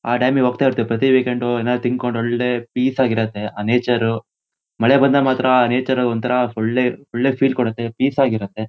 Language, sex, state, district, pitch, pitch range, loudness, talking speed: Kannada, male, Karnataka, Shimoga, 125 Hz, 115-130 Hz, -18 LUFS, 195 wpm